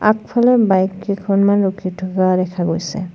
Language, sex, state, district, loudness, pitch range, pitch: Assamese, female, Assam, Sonitpur, -17 LUFS, 185-200 Hz, 190 Hz